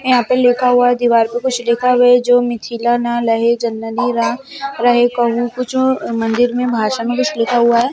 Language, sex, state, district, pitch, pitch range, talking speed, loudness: Hindi, male, Bihar, Darbhanga, 245 Hz, 235-250 Hz, 175 wpm, -15 LUFS